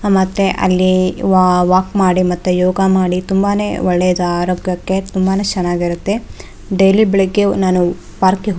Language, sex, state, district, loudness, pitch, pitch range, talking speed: Kannada, female, Karnataka, Raichur, -14 LUFS, 185 Hz, 180-195 Hz, 145 wpm